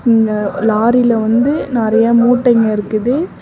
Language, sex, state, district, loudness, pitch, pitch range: Tamil, female, Tamil Nadu, Namakkal, -13 LUFS, 230 Hz, 220-245 Hz